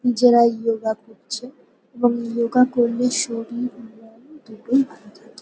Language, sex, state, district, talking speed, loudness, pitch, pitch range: Bengali, female, West Bengal, North 24 Parganas, 120 wpm, -20 LUFS, 235 Hz, 230-250 Hz